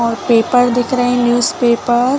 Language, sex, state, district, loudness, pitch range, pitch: Hindi, female, Chhattisgarh, Bilaspur, -13 LUFS, 240-245 Hz, 245 Hz